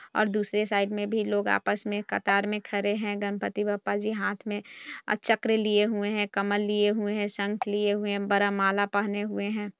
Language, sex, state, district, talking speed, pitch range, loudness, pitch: Hindi, female, Bihar, Saharsa, 210 wpm, 205-210 Hz, -27 LUFS, 205 Hz